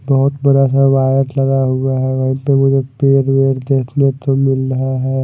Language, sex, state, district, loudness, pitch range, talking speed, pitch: Hindi, male, Odisha, Malkangiri, -14 LUFS, 130-135 Hz, 195 wpm, 135 Hz